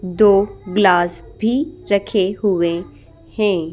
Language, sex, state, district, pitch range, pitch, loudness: Hindi, female, Madhya Pradesh, Bhopal, 175-205 Hz, 195 Hz, -17 LUFS